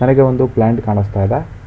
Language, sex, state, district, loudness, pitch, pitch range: Kannada, male, Karnataka, Bangalore, -15 LUFS, 115 Hz, 105-130 Hz